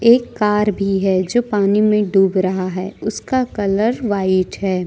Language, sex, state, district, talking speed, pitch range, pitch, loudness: Hindi, female, Jharkhand, Deoghar, 170 wpm, 190-215 Hz, 200 Hz, -17 LUFS